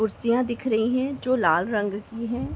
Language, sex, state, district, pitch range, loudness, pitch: Hindi, female, Uttar Pradesh, Gorakhpur, 220-250 Hz, -24 LUFS, 235 Hz